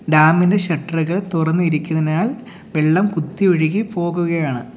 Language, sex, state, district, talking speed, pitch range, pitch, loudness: Malayalam, male, Kerala, Kollam, 100 wpm, 160-185 Hz, 165 Hz, -18 LUFS